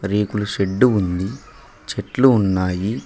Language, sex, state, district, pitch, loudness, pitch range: Telugu, male, Telangana, Mahabubabad, 100 Hz, -19 LUFS, 95-110 Hz